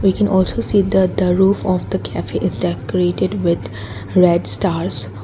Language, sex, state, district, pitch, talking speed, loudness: English, female, Assam, Kamrup Metropolitan, 180 Hz, 185 wpm, -17 LUFS